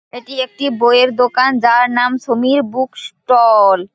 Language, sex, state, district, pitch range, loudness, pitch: Bengali, female, West Bengal, Paschim Medinipur, 235-260 Hz, -13 LUFS, 245 Hz